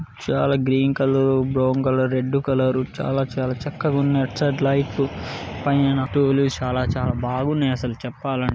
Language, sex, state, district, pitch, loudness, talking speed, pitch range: Telugu, male, Telangana, Nalgonda, 135 Hz, -21 LUFS, 140 wpm, 130-140 Hz